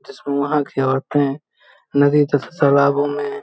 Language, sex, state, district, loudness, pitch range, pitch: Hindi, male, Uttar Pradesh, Hamirpur, -18 LUFS, 140-145 Hz, 145 Hz